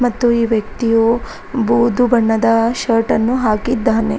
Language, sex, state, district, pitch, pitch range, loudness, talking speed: Kannada, female, Karnataka, Raichur, 230 Hz, 225-240 Hz, -15 LUFS, 100 wpm